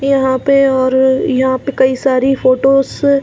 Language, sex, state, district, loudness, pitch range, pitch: Hindi, female, Chhattisgarh, Balrampur, -12 LUFS, 260-275 Hz, 265 Hz